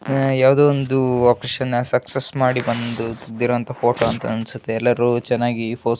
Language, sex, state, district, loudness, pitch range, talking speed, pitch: Kannada, male, Karnataka, Gulbarga, -19 LUFS, 120-130 Hz, 130 wpm, 120 Hz